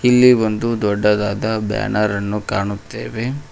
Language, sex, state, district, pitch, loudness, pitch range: Kannada, male, Karnataka, Koppal, 105 Hz, -18 LUFS, 105-115 Hz